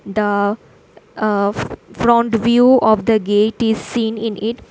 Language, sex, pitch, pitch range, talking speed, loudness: English, female, 220 Hz, 205-235 Hz, 125 wpm, -16 LUFS